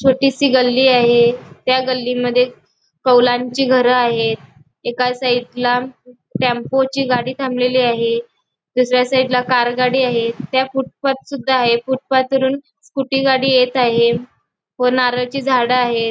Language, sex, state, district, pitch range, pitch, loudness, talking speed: Marathi, female, Goa, North and South Goa, 245-265 Hz, 250 Hz, -16 LUFS, 125 wpm